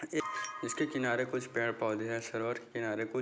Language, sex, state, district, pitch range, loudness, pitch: Hindi, male, Bihar, Jahanabad, 115-150 Hz, -35 LUFS, 125 Hz